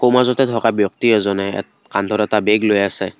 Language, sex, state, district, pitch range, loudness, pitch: Assamese, male, Assam, Kamrup Metropolitan, 100-115 Hz, -17 LUFS, 105 Hz